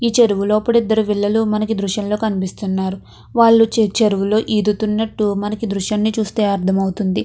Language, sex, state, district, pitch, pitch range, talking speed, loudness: Telugu, female, Andhra Pradesh, Krishna, 210 Hz, 200-220 Hz, 140 wpm, -17 LUFS